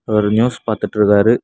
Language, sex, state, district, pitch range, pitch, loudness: Tamil, male, Tamil Nadu, Kanyakumari, 105-115 Hz, 110 Hz, -15 LUFS